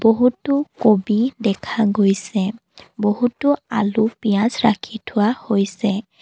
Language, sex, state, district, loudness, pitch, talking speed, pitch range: Assamese, female, Assam, Kamrup Metropolitan, -19 LUFS, 220 Hz, 95 wpm, 205-230 Hz